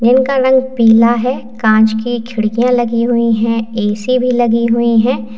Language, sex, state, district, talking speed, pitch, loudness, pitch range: Hindi, female, Uttar Pradesh, Lalitpur, 180 wpm, 235 Hz, -13 LUFS, 225-245 Hz